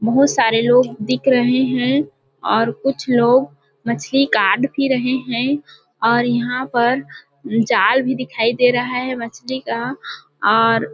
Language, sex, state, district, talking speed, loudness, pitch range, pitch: Hindi, female, Chhattisgarh, Balrampur, 150 wpm, -17 LUFS, 230-260 Hz, 245 Hz